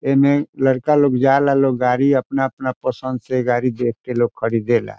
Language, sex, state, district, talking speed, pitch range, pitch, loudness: Bhojpuri, male, Bihar, Saran, 205 wpm, 120-135 Hz, 130 Hz, -18 LUFS